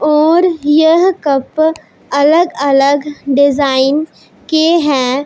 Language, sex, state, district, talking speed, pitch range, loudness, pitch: Hindi, female, Punjab, Pathankot, 90 wpm, 280-320 Hz, -12 LUFS, 295 Hz